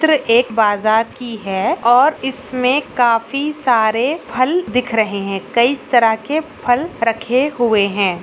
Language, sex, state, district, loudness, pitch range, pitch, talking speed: Hindi, female, Chhattisgarh, Raigarh, -16 LUFS, 220-265 Hz, 240 Hz, 145 wpm